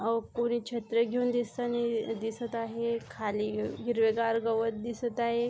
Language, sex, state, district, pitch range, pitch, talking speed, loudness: Marathi, female, Maharashtra, Aurangabad, 225-235 Hz, 230 Hz, 140 wpm, -31 LUFS